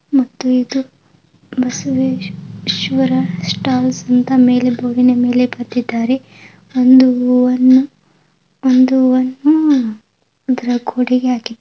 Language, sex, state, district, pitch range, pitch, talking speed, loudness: Kannada, female, Karnataka, Gulbarga, 230-255 Hz, 250 Hz, 85 wpm, -14 LUFS